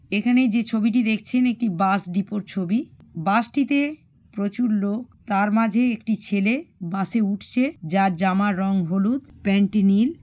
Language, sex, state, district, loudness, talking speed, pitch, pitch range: Bengali, female, West Bengal, Malda, -22 LUFS, 160 wpm, 210 Hz, 195-240 Hz